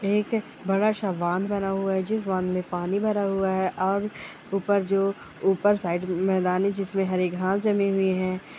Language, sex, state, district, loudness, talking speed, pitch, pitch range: Hindi, female, Chhattisgarh, Korba, -25 LUFS, 190 wpm, 195 Hz, 185-200 Hz